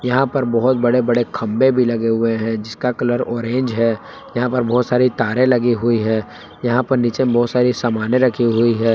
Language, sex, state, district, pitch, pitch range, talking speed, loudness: Hindi, male, Jharkhand, Palamu, 120 Hz, 115-125 Hz, 205 wpm, -17 LUFS